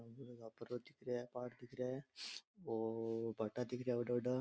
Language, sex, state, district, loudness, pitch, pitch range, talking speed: Rajasthani, male, Rajasthan, Nagaur, -45 LUFS, 120 Hz, 115-125 Hz, 230 wpm